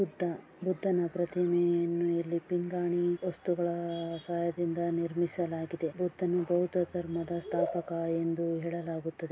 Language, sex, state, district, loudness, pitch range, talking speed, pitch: Kannada, female, Karnataka, Dharwad, -32 LUFS, 170-175 Hz, 90 wpm, 170 Hz